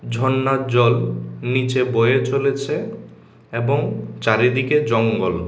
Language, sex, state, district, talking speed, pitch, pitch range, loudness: Bengali, male, Tripura, West Tripura, 85 wpm, 125 Hz, 115-130 Hz, -19 LUFS